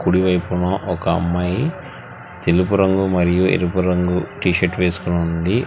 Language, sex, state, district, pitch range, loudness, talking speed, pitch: Telugu, male, Telangana, Hyderabad, 90-95 Hz, -18 LUFS, 135 wpm, 90 Hz